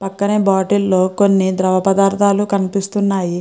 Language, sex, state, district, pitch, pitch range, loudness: Telugu, female, Andhra Pradesh, Guntur, 195 Hz, 190-200 Hz, -15 LUFS